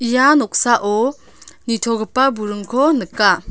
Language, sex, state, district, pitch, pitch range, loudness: Garo, female, Meghalaya, South Garo Hills, 240 Hz, 220-270 Hz, -16 LUFS